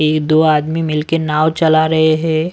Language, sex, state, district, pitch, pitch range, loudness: Hindi, male, Delhi, New Delhi, 155 Hz, 155-160 Hz, -14 LUFS